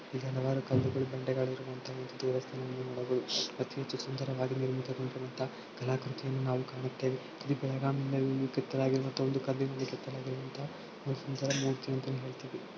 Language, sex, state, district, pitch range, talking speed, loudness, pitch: Kannada, male, Karnataka, Belgaum, 130-135 Hz, 135 wpm, -35 LUFS, 130 Hz